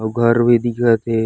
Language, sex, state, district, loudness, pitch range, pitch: Chhattisgarhi, male, Chhattisgarh, Raigarh, -15 LUFS, 115-120 Hz, 115 Hz